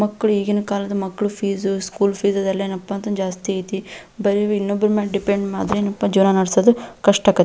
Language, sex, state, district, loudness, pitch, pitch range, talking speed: Kannada, female, Karnataka, Belgaum, -20 LUFS, 200 Hz, 195-205 Hz, 170 wpm